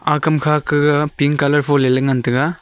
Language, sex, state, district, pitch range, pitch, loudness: Wancho, male, Arunachal Pradesh, Longding, 140-150 Hz, 145 Hz, -16 LUFS